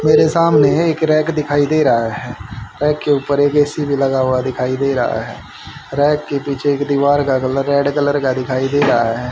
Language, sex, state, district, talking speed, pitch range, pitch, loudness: Hindi, male, Haryana, Charkhi Dadri, 220 wpm, 130-145 Hz, 140 Hz, -16 LUFS